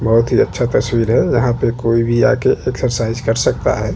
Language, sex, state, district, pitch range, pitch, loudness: Hindi, male, Chhattisgarh, Jashpur, 115-120 Hz, 115 Hz, -15 LUFS